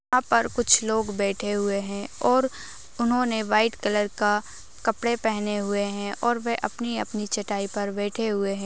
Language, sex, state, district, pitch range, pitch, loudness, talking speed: Hindi, female, Uttar Pradesh, Ghazipur, 205-235 Hz, 210 Hz, -25 LUFS, 165 wpm